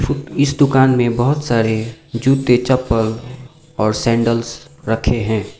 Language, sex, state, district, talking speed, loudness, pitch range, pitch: Hindi, male, Sikkim, Gangtok, 130 wpm, -16 LUFS, 115-135 Hz, 120 Hz